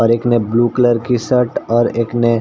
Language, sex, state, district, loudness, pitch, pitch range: Hindi, male, Uttar Pradesh, Ghazipur, -15 LUFS, 120 Hz, 115-120 Hz